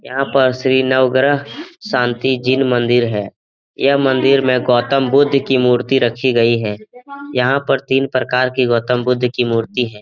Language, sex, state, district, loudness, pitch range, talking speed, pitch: Hindi, male, Bihar, Jahanabad, -15 LUFS, 125-135 Hz, 170 wpm, 130 Hz